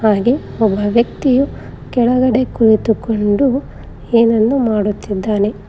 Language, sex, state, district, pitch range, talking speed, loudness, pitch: Kannada, female, Karnataka, Koppal, 210-250 Hz, 65 wpm, -15 LUFS, 225 Hz